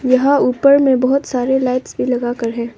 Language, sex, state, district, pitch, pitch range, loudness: Hindi, female, Arunachal Pradesh, Longding, 255 Hz, 245-270 Hz, -15 LUFS